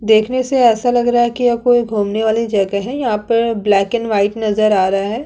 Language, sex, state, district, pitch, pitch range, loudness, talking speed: Hindi, female, Chhattisgarh, Kabirdham, 225 Hz, 210-240 Hz, -15 LUFS, 250 wpm